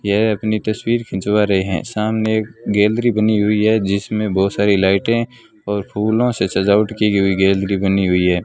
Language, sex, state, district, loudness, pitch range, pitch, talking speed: Hindi, male, Rajasthan, Bikaner, -17 LUFS, 95-110 Hz, 105 Hz, 185 wpm